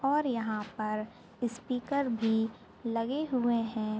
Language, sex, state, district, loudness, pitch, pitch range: Hindi, female, Maharashtra, Nagpur, -32 LUFS, 230 Hz, 220-250 Hz